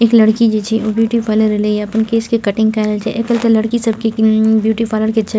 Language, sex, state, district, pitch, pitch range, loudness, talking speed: Maithili, female, Bihar, Purnia, 220 Hz, 215-225 Hz, -14 LUFS, 255 wpm